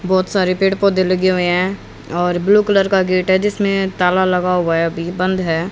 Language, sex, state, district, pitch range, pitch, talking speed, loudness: Hindi, female, Haryana, Rohtak, 180-195 Hz, 185 Hz, 220 wpm, -16 LUFS